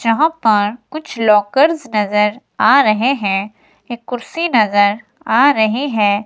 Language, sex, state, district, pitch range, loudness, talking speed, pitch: Hindi, female, Himachal Pradesh, Shimla, 210-275 Hz, -15 LUFS, 135 wpm, 220 Hz